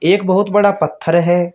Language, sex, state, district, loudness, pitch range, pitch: Hindi, male, Uttar Pradesh, Shamli, -14 LUFS, 170-195 Hz, 175 Hz